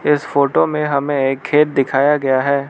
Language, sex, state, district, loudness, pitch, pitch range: Hindi, male, Arunachal Pradesh, Lower Dibang Valley, -16 LUFS, 140 Hz, 135-145 Hz